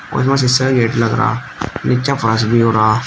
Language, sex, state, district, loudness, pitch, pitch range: Hindi, male, Uttar Pradesh, Shamli, -15 LUFS, 120 Hz, 115-130 Hz